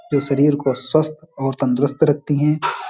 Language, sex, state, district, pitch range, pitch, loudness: Hindi, male, Uttar Pradesh, Hamirpur, 140-155 Hz, 145 Hz, -19 LUFS